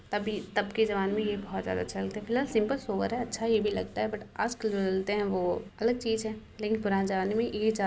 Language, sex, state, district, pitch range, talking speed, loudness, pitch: Hindi, female, Uttar Pradesh, Muzaffarnagar, 195-220 Hz, 265 wpm, -30 LUFS, 210 Hz